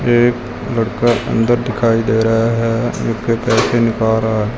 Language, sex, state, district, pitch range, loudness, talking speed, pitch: Hindi, male, Punjab, Fazilka, 115-120 Hz, -15 LUFS, 170 wpm, 115 Hz